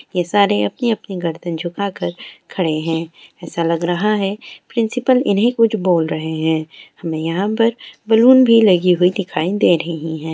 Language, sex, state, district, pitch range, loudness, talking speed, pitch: Hindi, female, Bihar, Sitamarhi, 165-215 Hz, -17 LUFS, 170 wpm, 180 Hz